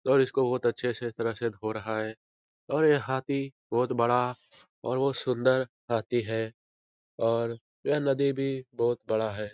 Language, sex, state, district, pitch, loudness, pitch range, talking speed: Hindi, male, Bihar, Lakhisarai, 120 Hz, -29 LUFS, 110-130 Hz, 170 wpm